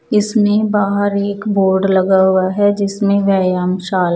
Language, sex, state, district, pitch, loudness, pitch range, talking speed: Hindi, male, Odisha, Nuapada, 200 Hz, -14 LUFS, 190-205 Hz, 160 wpm